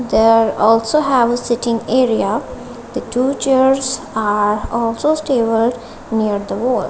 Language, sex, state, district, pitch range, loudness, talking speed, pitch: English, female, Punjab, Kapurthala, 225-260 Hz, -16 LUFS, 130 wpm, 235 Hz